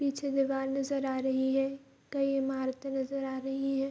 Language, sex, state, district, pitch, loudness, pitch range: Hindi, female, Bihar, Kishanganj, 270 Hz, -32 LUFS, 265-275 Hz